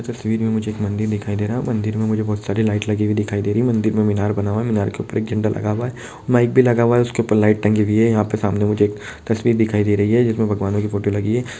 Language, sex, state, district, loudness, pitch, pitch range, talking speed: Hindi, male, Bihar, Jamui, -19 LUFS, 110 Hz, 105-115 Hz, 320 wpm